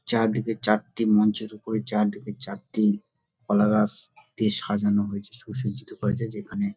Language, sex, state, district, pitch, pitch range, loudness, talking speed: Bengali, male, West Bengal, Dakshin Dinajpur, 105 Hz, 105-115 Hz, -26 LUFS, 160 wpm